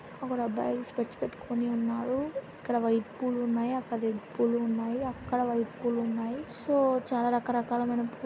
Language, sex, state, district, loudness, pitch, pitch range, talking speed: Telugu, female, Andhra Pradesh, Anantapur, -31 LUFS, 240 Hz, 235-250 Hz, 155 wpm